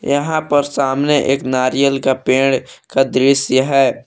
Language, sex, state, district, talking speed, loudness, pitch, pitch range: Hindi, male, Jharkhand, Palamu, 150 wpm, -15 LUFS, 135 Hz, 130-140 Hz